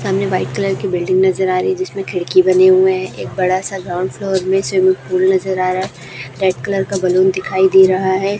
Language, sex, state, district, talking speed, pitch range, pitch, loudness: Hindi, male, Chhattisgarh, Raipur, 245 wpm, 185-190 Hz, 185 Hz, -15 LUFS